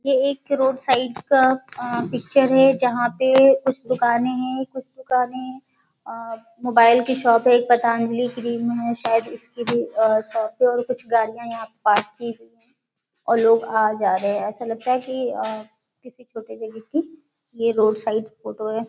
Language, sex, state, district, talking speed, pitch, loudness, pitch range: Hindi, female, Bihar, Jahanabad, 180 wpm, 235 Hz, -20 LUFS, 225-255 Hz